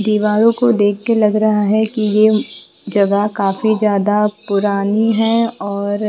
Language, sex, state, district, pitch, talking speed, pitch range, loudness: Hindi, female, Bihar, Patna, 210 Hz, 140 wpm, 205-220 Hz, -15 LUFS